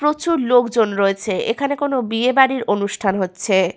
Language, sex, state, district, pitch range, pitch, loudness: Bengali, female, West Bengal, Paschim Medinipur, 200-265 Hz, 235 Hz, -18 LUFS